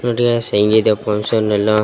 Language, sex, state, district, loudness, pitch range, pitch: Kannada, male, Karnataka, Raichur, -15 LUFS, 105-120 Hz, 110 Hz